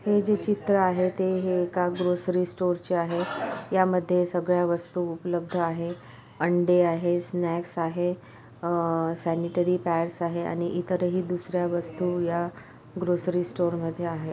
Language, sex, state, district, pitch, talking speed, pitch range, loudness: Marathi, female, Maharashtra, Pune, 175 Hz, 140 wpm, 170-180 Hz, -27 LUFS